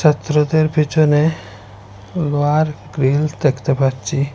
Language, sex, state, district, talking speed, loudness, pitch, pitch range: Bengali, male, Assam, Hailakandi, 85 wpm, -17 LUFS, 145 Hz, 135-155 Hz